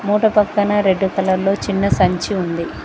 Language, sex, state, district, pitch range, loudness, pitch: Telugu, female, Telangana, Mahabubabad, 185-205 Hz, -17 LUFS, 195 Hz